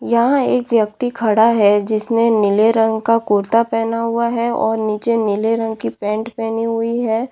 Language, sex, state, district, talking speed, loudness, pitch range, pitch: Hindi, female, Bihar, Madhepura, 180 wpm, -16 LUFS, 220-235 Hz, 225 Hz